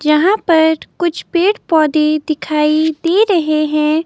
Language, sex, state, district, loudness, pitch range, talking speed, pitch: Hindi, female, Himachal Pradesh, Shimla, -14 LUFS, 305-345 Hz, 135 wpm, 315 Hz